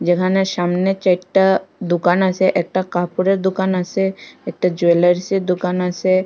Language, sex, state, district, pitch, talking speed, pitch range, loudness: Bengali, female, Assam, Hailakandi, 185 Hz, 125 wpm, 175-190 Hz, -17 LUFS